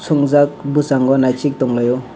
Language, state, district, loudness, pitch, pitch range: Kokborok, Tripura, West Tripura, -15 LUFS, 135 Hz, 130-145 Hz